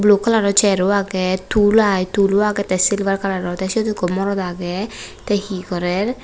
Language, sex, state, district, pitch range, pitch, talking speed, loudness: Chakma, female, Tripura, West Tripura, 185-210 Hz, 200 Hz, 200 wpm, -18 LUFS